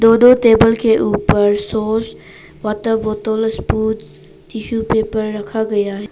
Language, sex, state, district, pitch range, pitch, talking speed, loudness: Hindi, female, Arunachal Pradesh, Papum Pare, 215-225 Hz, 220 Hz, 125 wpm, -15 LUFS